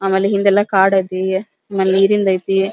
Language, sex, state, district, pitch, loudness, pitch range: Kannada, female, Karnataka, Belgaum, 195 Hz, -16 LUFS, 190-200 Hz